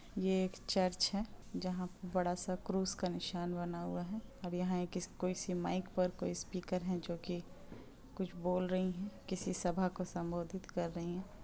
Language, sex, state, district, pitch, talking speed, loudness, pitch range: Hindi, female, Bihar, Purnia, 180 Hz, 185 wpm, -39 LUFS, 175-185 Hz